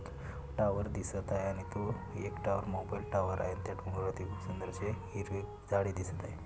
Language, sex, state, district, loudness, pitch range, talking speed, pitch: Marathi, male, Maharashtra, Pune, -38 LUFS, 95-100 Hz, 160 wpm, 95 Hz